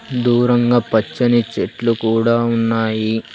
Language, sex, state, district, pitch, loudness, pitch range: Telugu, male, Telangana, Hyderabad, 115 Hz, -16 LUFS, 110-120 Hz